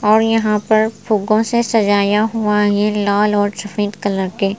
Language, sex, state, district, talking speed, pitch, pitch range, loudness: Hindi, female, Punjab, Pathankot, 185 wpm, 210 Hz, 205-220 Hz, -16 LUFS